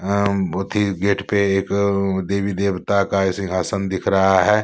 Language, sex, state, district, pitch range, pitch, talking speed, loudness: Hindi, male, Jharkhand, Deoghar, 95-100 Hz, 100 Hz, 170 wpm, -19 LUFS